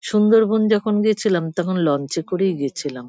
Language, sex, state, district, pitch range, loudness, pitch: Bengali, female, West Bengal, Kolkata, 160-215 Hz, -19 LUFS, 185 Hz